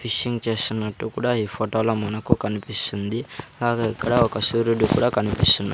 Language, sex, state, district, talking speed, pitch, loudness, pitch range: Telugu, male, Andhra Pradesh, Sri Satya Sai, 145 wpm, 110 Hz, -22 LUFS, 105-120 Hz